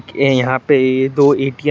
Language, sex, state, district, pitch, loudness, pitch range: Hindi, male, Tripura, West Tripura, 135 Hz, -14 LUFS, 130-140 Hz